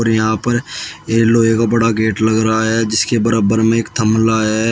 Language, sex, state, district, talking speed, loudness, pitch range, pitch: Hindi, male, Uttar Pradesh, Shamli, 205 wpm, -14 LUFS, 110-115 Hz, 110 Hz